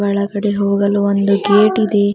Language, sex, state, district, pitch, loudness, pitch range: Kannada, female, Karnataka, Bidar, 200 Hz, -14 LUFS, 200-205 Hz